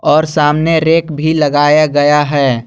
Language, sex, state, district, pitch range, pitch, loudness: Hindi, male, Jharkhand, Garhwa, 145-155 Hz, 150 Hz, -11 LUFS